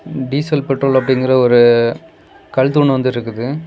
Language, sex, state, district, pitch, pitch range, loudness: Tamil, male, Tamil Nadu, Kanyakumari, 130 Hz, 120-135 Hz, -14 LUFS